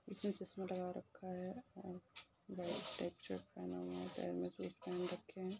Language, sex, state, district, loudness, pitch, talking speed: Hindi, female, Rajasthan, Churu, -47 LUFS, 180 Hz, 130 wpm